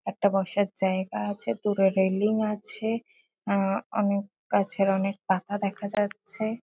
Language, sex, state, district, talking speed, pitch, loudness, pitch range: Bengali, female, West Bengal, Kolkata, 125 wpm, 200 Hz, -27 LUFS, 190-205 Hz